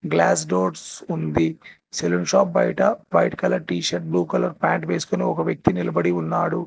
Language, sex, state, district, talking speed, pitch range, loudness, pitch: Telugu, male, Telangana, Hyderabad, 160 wpm, 85-90 Hz, -22 LUFS, 85 Hz